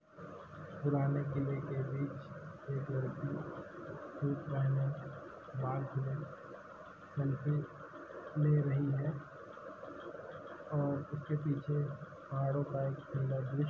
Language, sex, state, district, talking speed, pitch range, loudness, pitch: Hindi, male, Uttar Pradesh, Hamirpur, 90 wpm, 135-145 Hz, -38 LUFS, 140 Hz